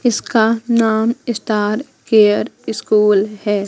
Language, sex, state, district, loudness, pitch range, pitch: Hindi, female, Madhya Pradesh, Katni, -16 LUFS, 210-235 Hz, 220 Hz